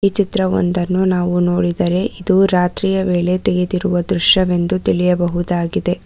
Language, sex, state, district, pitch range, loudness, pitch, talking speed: Kannada, female, Karnataka, Bangalore, 175-190 Hz, -16 LUFS, 180 Hz, 100 wpm